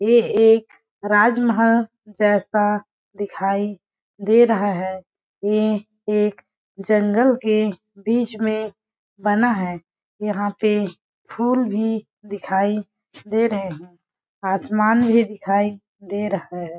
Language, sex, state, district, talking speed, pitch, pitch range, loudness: Hindi, female, Chhattisgarh, Balrampur, 105 wpm, 210 Hz, 200-220 Hz, -20 LUFS